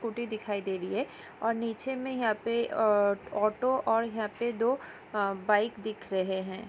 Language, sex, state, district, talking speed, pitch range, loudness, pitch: Hindi, female, Maharashtra, Aurangabad, 170 wpm, 205-235 Hz, -30 LUFS, 215 Hz